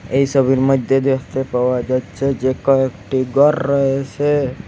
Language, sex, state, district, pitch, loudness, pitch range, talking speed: Bengali, male, Assam, Hailakandi, 135 Hz, -17 LUFS, 130-135 Hz, 130 wpm